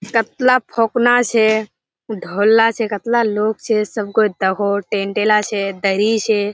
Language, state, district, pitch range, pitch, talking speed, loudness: Surjapuri, Bihar, Kishanganj, 205-225 Hz, 215 Hz, 140 wpm, -16 LUFS